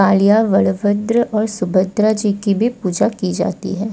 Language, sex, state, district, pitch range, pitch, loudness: Hindi, female, Odisha, Sambalpur, 195-215 Hz, 205 Hz, -16 LUFS